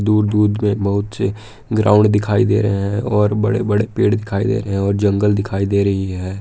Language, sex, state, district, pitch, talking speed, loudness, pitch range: Hindi, male, Jharkhand, Palamu, 105 Hz, 225 wpm, -17 LUFS, 100-105 Hz